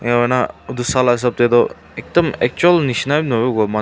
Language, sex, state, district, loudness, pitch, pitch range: Nagamese, male, Nagaland, Kohima, -16 LUFS, 125 Hz, 120-130 Hz